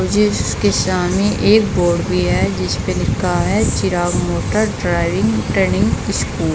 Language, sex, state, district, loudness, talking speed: Hindi, female, Uttar Pradesh, Saharanpur, -16 LUFS, 145 wpm